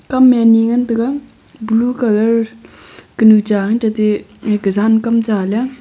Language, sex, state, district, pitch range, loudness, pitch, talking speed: Wancho, female, Arunachal Pradesh, Longding, 215-240 Hz, -14 LUFS, 225 Hz, 175 wpm